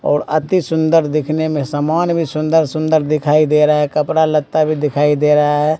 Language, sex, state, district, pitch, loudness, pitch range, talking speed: Hindi, male, Bihar, Katihar, 155 Hz, -15 LUFS, 150-160 Hz, 205 wpm